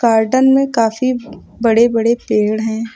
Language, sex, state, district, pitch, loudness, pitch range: Hindi, female, Uttar Pradesh, Lucknow, 230 Hz, -14 LUFS, 225-255 Hz